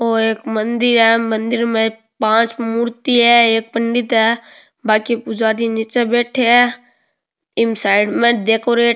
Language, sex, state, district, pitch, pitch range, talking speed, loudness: Rajasthani, male, Rajasthan, Nagaur, 230 Hz, 225-235 Hz, 145 wpm, -15 LUFS